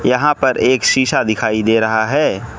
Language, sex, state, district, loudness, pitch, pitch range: Hindi, male, Manipur, Imphal West, -14 LUFS, 115 Hz, 110-130 Hz